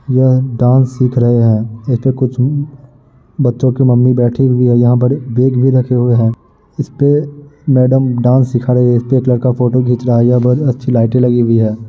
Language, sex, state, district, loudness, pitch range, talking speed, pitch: Hindi, male, Uttar Pradesh, Muzaffarnagar, -12 LUFS, 120-130 Hz, 215 wpm, 125 Hz